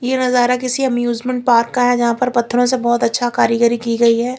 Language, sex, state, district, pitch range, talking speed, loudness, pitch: Hindi, female, Chandigarh, Chandigarh, 235-250 Hz, 230 wpm, -16 LUFS, 245 Hz